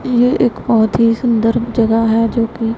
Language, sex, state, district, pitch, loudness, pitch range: Hindi, female, Punjab, Pathankot, 230 Hz, -14 LUFS, 225-240 Hz